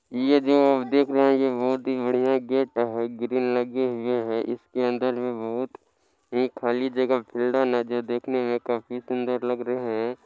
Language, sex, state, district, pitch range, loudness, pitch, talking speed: Maithili, male, Bihar, Supaul, 120-130 Hz, -25 LUFS, 125 Hz, 170 wpm